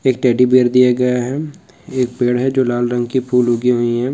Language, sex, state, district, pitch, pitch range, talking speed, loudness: Hindi, male, Bihar, Jamui, 125 Hz, 125-130 Hz, 245 wpm, -15 LUFS